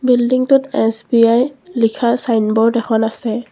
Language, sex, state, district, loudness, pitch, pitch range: Assamese, female, Assam, Kamrup Metropolitan, -15 LUFS, 235 Hz, 225-250 Hz